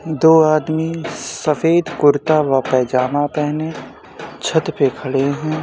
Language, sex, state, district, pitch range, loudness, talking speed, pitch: Hindi, male, Uttar Pradesh, Jyotiba Phule Nagar, 140-160 Hz, -17 LUFS, 130 wpm, 155 Hz